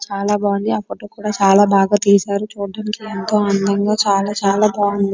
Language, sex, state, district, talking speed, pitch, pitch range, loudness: Telugu, female, Andhra Pradesh, Srikakulam, 165 wpm, 200 Hz, 200-210 Hz, -17 LUFS